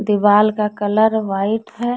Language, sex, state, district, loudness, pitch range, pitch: Hindi, female, Jharkhand, Deoghar, -17 LUFS, 205-220 Hz, 210 Hz